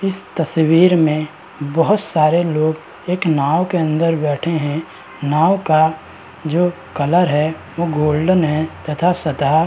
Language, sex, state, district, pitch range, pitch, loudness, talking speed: Hindi, male, Uttar Pradesh, Varanasi, 155-175 Hz, 160 Hz, -17 LUFS, 145 wpm